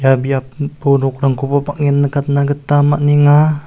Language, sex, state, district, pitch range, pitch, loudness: Garo, male, Meghalaya, South Garo Hills, 140-145 Hz, 140 Hz, -14 LUFS